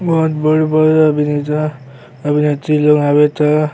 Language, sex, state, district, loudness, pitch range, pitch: Bhojpuri, male, Uttar Pradesh, Gorakhpur, -13 LUFS, 150-155 Hz, 150 Hz